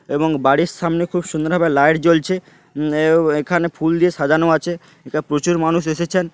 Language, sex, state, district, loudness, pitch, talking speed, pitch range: Bengali, male, West Bengal, Paschim Medinipur, -17 LUFS, 165 Hz, 180 wpm, 155-170 Hz